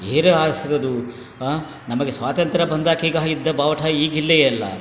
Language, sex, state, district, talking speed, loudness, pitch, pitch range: Kannada, male, Karnataka, Chamarajanagar, 135 wpm, -19 LUFS, 155 Hz, 135-160 Hz